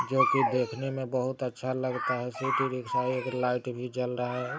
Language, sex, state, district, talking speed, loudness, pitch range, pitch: Maithili, male, Bihar, Araria, 155 wpm, -30 LUFS, 125-130 Hz, 125 Hz